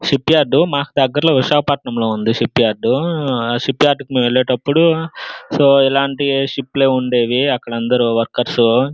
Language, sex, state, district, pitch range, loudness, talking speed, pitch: Telugu, male, Andhra Pradesh, Srikakulam, 120-145 Hz, -15 LUFS, 155 wpm, 135 Hz